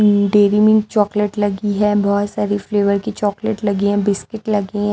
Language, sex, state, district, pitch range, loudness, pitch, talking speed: Hindi, female, Delhi, New Delhi, 205-210 Hz, -17 LUFS, 205 Hz, 185 wpm